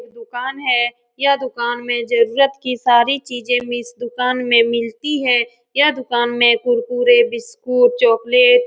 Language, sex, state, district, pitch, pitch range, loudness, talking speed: Hindi, female, Bihar, Saran, 250 Hz, 240-280 Hz, -16 LUFS, 160 wpm